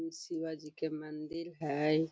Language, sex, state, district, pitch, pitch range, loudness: Magahi, female, Bihar, Gaya, 160 Hz, 155-165 Hz, -37 LUFS